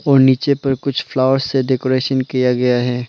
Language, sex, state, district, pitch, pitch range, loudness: Hindi, male, Arunachal Pradesh, Lower Dibang Valley, 130 Hz, 125-135 Hz, -16 LUFS